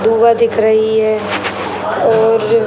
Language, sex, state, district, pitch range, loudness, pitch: Hindi, male, Bihar, Sitamarhi, 220-225 Hz, -13 LUFS, 220 Hz